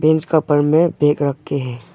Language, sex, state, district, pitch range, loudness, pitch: Hindi, male, Arunachal Pradesh, Longding, 140-160 Hz, -17 LUFS, 145 Hz